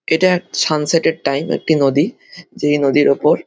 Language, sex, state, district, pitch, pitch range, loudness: Bengali, male, West Bengal, Malda, 150 Hz, 140-165 Hz, -16 LUFS